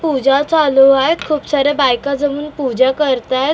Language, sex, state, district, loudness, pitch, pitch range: Marathi, female, Maharashtra, Mumbai Suburban, -14 LUFS, 280 Hz, 270-295 Hz